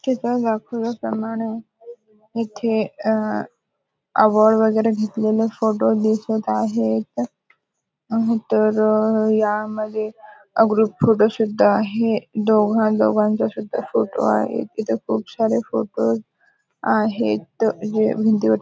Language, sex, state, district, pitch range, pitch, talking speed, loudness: Marathi, female, Maharashtra, Aurangabad, 210-225 Hz, 215 Hz, 95 wpm, -20 LUFS